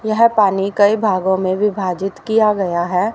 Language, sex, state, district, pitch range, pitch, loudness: Hindi, female, Haryana, Rohtak, 190-215 Hz, 200 Hz, -16 LUFS